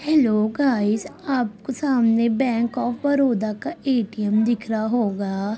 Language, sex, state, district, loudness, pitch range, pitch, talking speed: Hindi, female, Bihar, Sitamarhi, -22 LUFS, 215-265 Hz, 235 Hz, 130 wpm